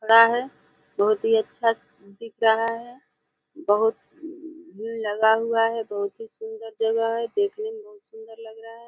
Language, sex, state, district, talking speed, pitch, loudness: Hindi, female, Uttar Pradesh, Deoria, 160 wpm, 230 Hz, -23 LUFS